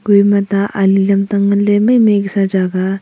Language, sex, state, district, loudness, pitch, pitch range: Wancho, female, Arunachal Pradesh, Longding, -13 LUFS, 200 Hz, 195-205 Hz